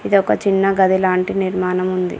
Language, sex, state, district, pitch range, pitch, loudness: Telugu, female, Telangana, Komaram Bheem, 185-195 Hz, 190 Hz, -17 LUFS